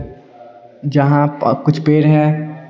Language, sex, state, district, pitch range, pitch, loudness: Hindi, male, Bihar, Patna, 135-150 Hz, 145 Hz, -14 LUFS